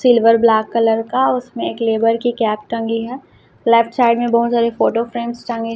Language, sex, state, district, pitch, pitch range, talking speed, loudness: Hindi, female, Chhattisgarh, Raipur, 230 Hz, 230-240 Hz, 200 wpm, -16 LUFS